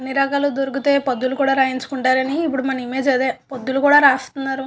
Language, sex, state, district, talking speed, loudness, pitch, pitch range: Telugu, female, Andhra Pradesh, Visakhapatnam, 155 wpm, -18 LUFS, 270 Hz, 260-275 Hz